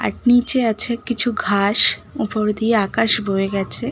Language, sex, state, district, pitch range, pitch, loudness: Bengali, female, West Bengal, Malda, 205-240 Hz, 225 Hz, -17 LUFS